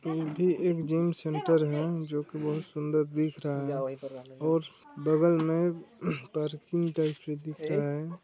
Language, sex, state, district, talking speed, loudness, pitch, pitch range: Hindi, male, Chhattisgarh, Sarguja, 160 wpm, -30 LUFS, 155 Hz, 150-165 Hz